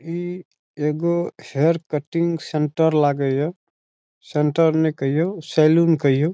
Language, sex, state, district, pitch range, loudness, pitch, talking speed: Maithili, male, Bihar, Saharsa, 145-170 Hz, -20 LUFS, 155 Hz, 125 wpm